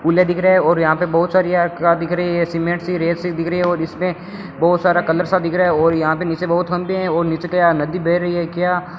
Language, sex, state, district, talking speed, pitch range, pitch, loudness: Hindi, male, Rajasthan, Bikaner, 305 wpm, 170-180 Hz, 175 Hz, -17 LUFS